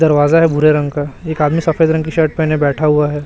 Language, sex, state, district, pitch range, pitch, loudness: Hindi, male, Chhattisgarh, Raipur, 150-160 Hz, 155 Hz, -14 LUFS